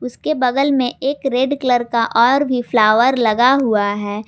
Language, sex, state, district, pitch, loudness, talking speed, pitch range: Hindi, female, Jharkhand, Garhwa, 250 Hz, -16 LUFS, 170 wpm, 230-265 Hz